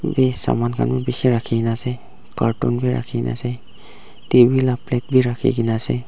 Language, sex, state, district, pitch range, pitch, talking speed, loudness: Nagamese, male, Nagaland, Dimapur, 115-130 Hz, 120 Hz, 160 wpm, -19 LUFS